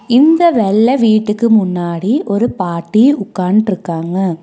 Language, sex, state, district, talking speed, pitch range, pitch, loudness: Tamil, female, Tamil Nadu, Nilgiris, 95 wpm, 185-235 Hz, 210 Hz, -13 LUFS